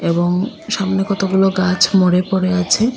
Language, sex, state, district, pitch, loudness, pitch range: Bengali, female, Assam, Hailakandi, 190 Hz, -16 LUFS, 180-195 Hz